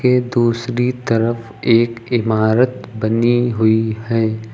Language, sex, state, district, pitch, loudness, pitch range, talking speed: Hindi, male, Uttar Pradesh, Lucknow, 115 Hz, -17 LUFS, 110-120 Hz, 105 wpm